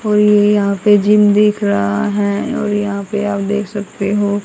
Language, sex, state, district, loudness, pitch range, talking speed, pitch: Hindi, female, Haryana, Charkhi Dadri, -14 LUFS, 200-210 Hz, 200 wpm, 205 Hz